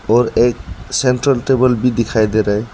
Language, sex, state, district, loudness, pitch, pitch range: Hindi, male, Arunachal Pradesh, Lower Dibang Valley, -15 LUFS, 120 Hz, 110-125 Hz